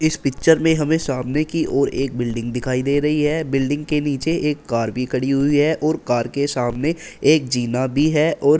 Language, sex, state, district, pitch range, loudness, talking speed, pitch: Hindi, male, Uttar Pradesh, Shamli, 130-155 Hz, -19 LUFS, 215 wpm, 145 Hz